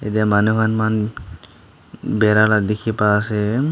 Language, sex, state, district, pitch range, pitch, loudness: Nagamese, male, Nagaland, Dimapur, 105-110 Hz, 105 Hz, -18 LUFS